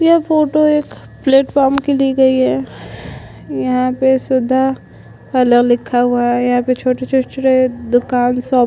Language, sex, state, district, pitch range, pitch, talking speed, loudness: Hindi, female, Chhattisgarh, Sukma, 245-270 Hz, 255 Hz, 165 wpm, -14 LUFS